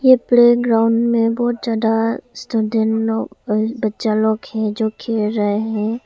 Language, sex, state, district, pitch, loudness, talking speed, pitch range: Hindi, female, Arunachal Pradesh, Longding, 225 Hz, -18 LUFS, 130 wpm, 220-235 Hz